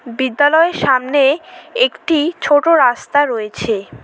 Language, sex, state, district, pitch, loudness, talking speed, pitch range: Bengali, female, West Bengal, Cooch Behar, 290 Hz, -14 LUFS, 90 wpm, 250-330 Hz